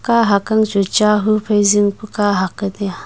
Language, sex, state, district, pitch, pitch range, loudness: Wancho, female, Arunachal Pradesh, Longding, 205 Hz, 200-215 Hz, -15 LUFS